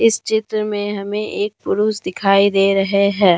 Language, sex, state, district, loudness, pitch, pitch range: Hindi, female, Jharkhand, Deoghar, -17 LUFS, 205 Hz, 195-215 Hz